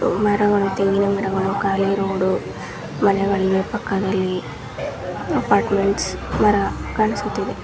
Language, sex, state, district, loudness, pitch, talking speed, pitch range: Kannada, male, Karnataka, Dharwad, -20 LUFS, 200 Hz, 85 wpm, 195-205 Hz